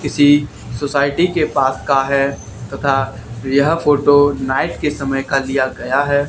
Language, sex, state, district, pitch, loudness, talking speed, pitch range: Hindi, male, Haryana, Charkhi Dadri, 140 Hz, -16 LUFS, 155 wpm, 130-145 Hz